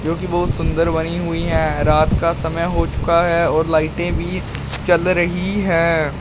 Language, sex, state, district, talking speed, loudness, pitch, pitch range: Hindi, male, Uttar Pradesh, Shamli, 175 wpm, -18 LUFS, 165 Hz, 160-175 Hz